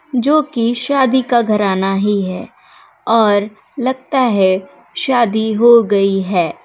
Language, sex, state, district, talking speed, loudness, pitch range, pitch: Hindi, female, Uttar Pradesh, Hamirpur, 125 wpm, -14 LUFS, 200-260 Hz, 225 Hz